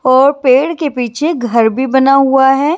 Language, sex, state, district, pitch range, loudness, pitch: Hindi, female, Maharashtra, Washim, 255-290 Hz, -11 LUFS, 270 Hz